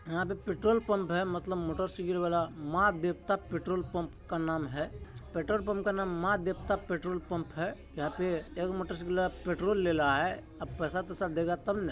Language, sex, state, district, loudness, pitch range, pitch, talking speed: Maithili, male, Bihar, Supaul, -33 LUFS, 170-190 Hz, 180 Hz, 210 wpm